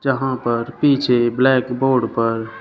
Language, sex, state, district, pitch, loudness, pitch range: Hindi, male, Uttar Pradesh, Shamli, 125 Hz, -18 LUFS, 120-135 Hz